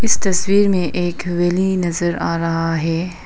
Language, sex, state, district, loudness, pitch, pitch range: Hindi, female, Arunachal Pradesh, Papum Pare, -18 LUFS, 175 Hz, 170-190 Hz